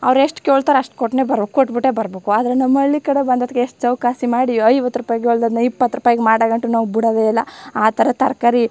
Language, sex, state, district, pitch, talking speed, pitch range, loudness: Kannada, female, Karnataka, Chamarajanagar, 245 Hz, 215 wpm, 230-260 Hz, -16 LUFS